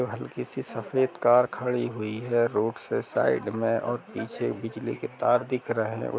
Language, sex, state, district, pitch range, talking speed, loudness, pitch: Hindi, male, Jharkhand, Jamtara, 110-125 Hz, 195 wpm, -27 LUFS, 120 Hz